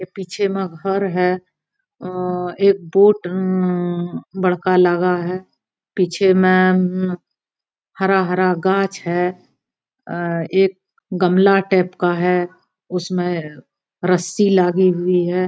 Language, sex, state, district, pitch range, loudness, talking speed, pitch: Maithili, female, Bihar, Araria, 180-190 Hz, -18 LUFS, 110 wpm, 185 Hz